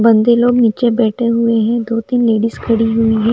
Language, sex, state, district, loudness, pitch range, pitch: Hindi, female, Punjab, Fazilka, -14 LUFS, 225-235 Hz, 230 Hz